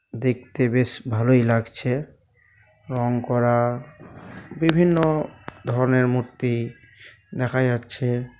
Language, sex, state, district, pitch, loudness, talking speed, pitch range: Bengali, male, West Bengal, Malda, 125 Hz, -22 LUFS, 80 wpm, 120-130 Hz